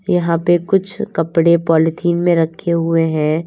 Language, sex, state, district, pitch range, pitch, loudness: Hindi, female, Uttar Pradesh, Lalitpur, 165-175 Hz, 170 Hz, -15 LUFS